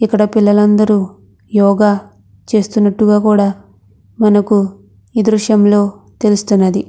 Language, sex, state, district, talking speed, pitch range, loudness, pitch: Telugu, female, Andhra Pradesh, Krishna, 105 wpm, 190-210 Hz, -13 LUFS, 205 Hz